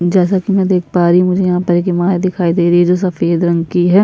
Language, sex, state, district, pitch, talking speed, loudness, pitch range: Hindi, female, Bihar, Kishanganj, 180 Hz, 310 wpm, -13 LUFS, 175-185 Hz